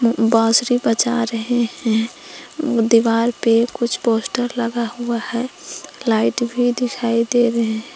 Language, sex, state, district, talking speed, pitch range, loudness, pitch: Hindi, female, Jharkhand, Palamu, 130 wpm, 230-245 Hz, -18 LUFS, 235 Hz